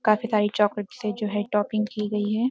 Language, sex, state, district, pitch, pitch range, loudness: Hindi, female, Uttarakhand, Uttarkashi, 210 Hz, 210-215 Hz, -25 LUFS